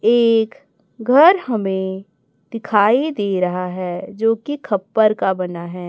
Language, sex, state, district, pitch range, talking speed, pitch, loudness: Hindi, female, Chhattisgarh, Raipur, 190-230 Hz, 120 wpm, 205 Hz, -18 LUFS